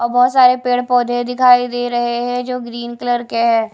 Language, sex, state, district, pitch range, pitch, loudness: Hindi, female, Odisha, Khordha, 240-250 Hz, 245 Hz, -15 LUFS